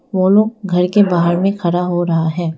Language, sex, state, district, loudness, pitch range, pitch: Hindi, female, Arunachal Pradesh, Lower Dibang Valley, -15 LUFS, 175-195 Hz, 180 Hz